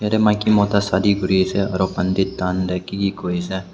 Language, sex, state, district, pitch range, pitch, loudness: Nagamese, male, Nagaland, Dimapur, 95-100 Hz, 95 Hz, -19 LUFS